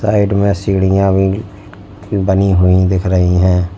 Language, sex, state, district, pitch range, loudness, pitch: Hindi, male, Uttar Pradesh, Lalitpur, 95-100 Hz, -13 LUFS, 95 Hz